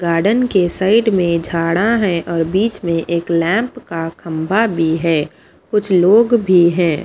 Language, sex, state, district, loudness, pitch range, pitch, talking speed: Hindi, female, Punjab, Pathankot, -15 LUFS, 165-210 Hz, 175 Hz, 160 wpm